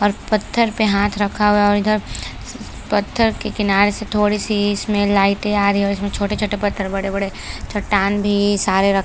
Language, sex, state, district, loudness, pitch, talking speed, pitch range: Hindi, female, Maharashtra, Chandrapur, -18 LUFS, 205 Hz, 205 wpm, 200-210 Hz